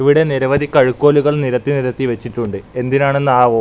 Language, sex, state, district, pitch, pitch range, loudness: Malayalam, male, Kerala, Kasaragod, 135 Hz, 125-140 Hz, -15 LUFS